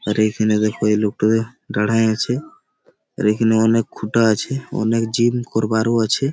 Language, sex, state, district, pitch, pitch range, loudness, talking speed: Bengali, male, West Bengal, Malda, 115 Hz, 110-120 Hz, -18 LUFS, 150 wpm